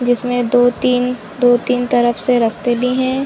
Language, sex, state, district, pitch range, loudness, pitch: Hindi, female, Chhattisgarh, Bilaspur, 240-250 Hz, -15 LUFS, 245 Hz